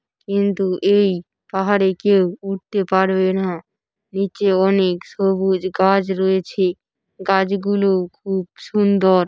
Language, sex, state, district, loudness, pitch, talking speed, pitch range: Bengali, female, West Bengal, Paschim Medinipur, -19 LUFS, 190 Hz, 95 wpm, 190-200 Hz